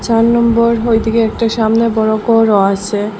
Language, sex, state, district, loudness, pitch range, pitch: Bengali, female, Assam, Hailakandi, -12 LUFS, 220-230 Hz, 225 Hz